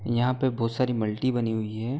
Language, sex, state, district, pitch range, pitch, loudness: Hindi, male, Uttar Pradesh, Gorakhpur, 110-130 Hz, 120 Hz, -27 LUFS